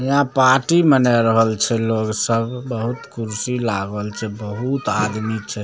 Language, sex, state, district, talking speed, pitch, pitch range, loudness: Maithili, male, Bihar, Samastipur, 150 wpm, 115 Hz, 110-125 Hz, -19 LUFS